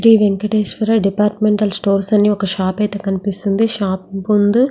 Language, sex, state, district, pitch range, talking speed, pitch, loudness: Telugu, female, Andhra Pradesh, Srikakulam, 195-215 Hz, 155 wpm, 205 Hz, -16 LUFS